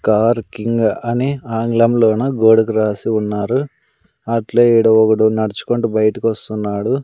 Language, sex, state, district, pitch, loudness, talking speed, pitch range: Telugu, male, Andhra Pradesh, Sri Satya Sai, 110 Hz, -16 LUFS, 120 wpm, 110-115 Hz